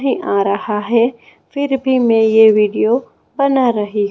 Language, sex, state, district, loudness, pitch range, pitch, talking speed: Hindi, female, Chhattisgarh, Raipur, -14 LUFS, 210-265 Hz, 230 Hz, 160 wpm